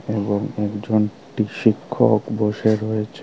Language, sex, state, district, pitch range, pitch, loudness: Bengali, male, Tripura, Unakoti, 105-110 Hz, 110 Hz, -21 LUFS